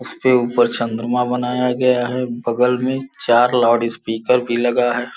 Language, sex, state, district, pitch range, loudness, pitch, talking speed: Hindi, male, Uttar Pradesh, Gorakhpur, 120-125 Hz, -18 LUFS, 125 Hz, 150 wpm